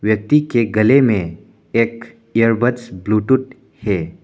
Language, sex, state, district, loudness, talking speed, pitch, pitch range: Hindi, male, Arunachal Pradesh, Papum Pare, -17 LUFS, 115 wpm, 115 Hz, 105-120 Hz